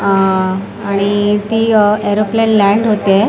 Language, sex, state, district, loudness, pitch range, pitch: Marathi, female, Maharashtra, Mumbai Suburban, -13 LUFS, 200-215 Hz, 205 Hz